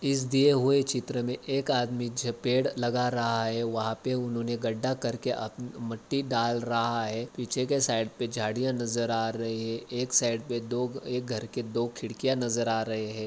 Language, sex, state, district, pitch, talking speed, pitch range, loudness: Hindi, male, Maharashtra, Aurangabad, 120 Hz, 195 wpm, 115-125 Hz, -29 LUFS